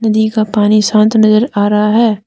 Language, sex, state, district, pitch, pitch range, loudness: Hindi, female, Jharkhand, Deoghar, 215 Hz, 210-220 Hz, -11 LUFS